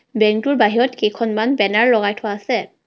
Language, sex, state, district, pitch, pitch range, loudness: Assamese, female, Assam, Kamrup Metropolitan, 220 Hz, 210-245 Hz, -17 LUFS